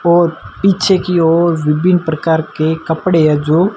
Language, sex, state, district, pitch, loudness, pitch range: Hindi, male, Rajasthan, Jaisalmer, 165 Hz, -13 LUFS, 160-175 Hz